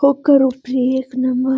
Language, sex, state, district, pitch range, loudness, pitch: Magahi, female, Bihar, Gaya, 255-275 Hz, -16 LUFS, 260 Hz